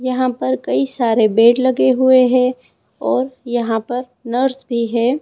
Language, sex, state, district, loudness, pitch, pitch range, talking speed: Hindi, female, Chhattisgarh, Raipur, -16 LUFS, 250 Hz, 230-255 Hz, 160 wpm